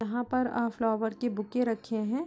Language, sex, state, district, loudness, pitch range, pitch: Hindi, female, Uttar Pradesh, Budaun, -30 LUFS, 225-245 Hz, 230 Hz